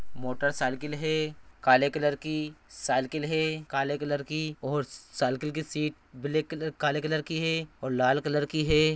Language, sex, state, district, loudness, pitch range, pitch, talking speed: Hindi, male, Bihar, Araria, -29 LUFS, 140-155 Hz, 150 Hz, 160 wpm